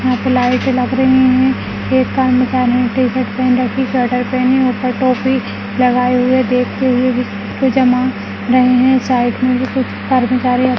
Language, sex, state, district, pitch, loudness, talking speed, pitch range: Kumaoni, female, Uttarakhand, Uttarkashi, 255 Hz, -14 LUFS, 165 wpm, 250-255 Hz